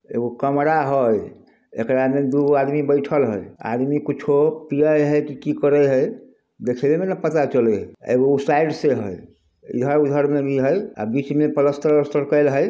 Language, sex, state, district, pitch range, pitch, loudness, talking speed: Hindi, male, Bihar, Samastipur, 140-150 Hz, 145 Hz, -20 LUFS, 180 wpm